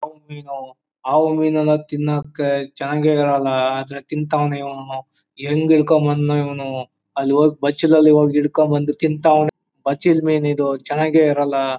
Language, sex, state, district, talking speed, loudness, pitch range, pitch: Kannada, male, Karnataka, Chamarajanagar, 120 wpm, -18 LUFS, 140-155 Hz, 145 Hz